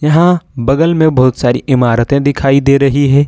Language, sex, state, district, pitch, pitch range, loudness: Hindi, male, Jharkhand, Ranchi, 140 Hz, 130-150 Hz, -11 LUFS